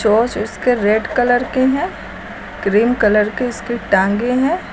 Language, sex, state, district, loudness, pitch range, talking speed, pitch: Hindi, female, Uttar Pradesh, Lucknow, -16 LUFS, 210-245 Hz, 150 wpm, 235 Hz